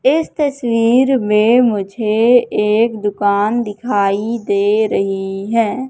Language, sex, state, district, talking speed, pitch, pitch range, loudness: Hindi, female, Madhya Pradesh, Katni, 100 wpm, 220 Hz, 205-240 Hz, -15 LUFS